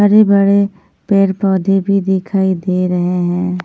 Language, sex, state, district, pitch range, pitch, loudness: Hindi, female, Punjab, Kapurthala, 180-200 Hz, 195 Hz, -14 LUFS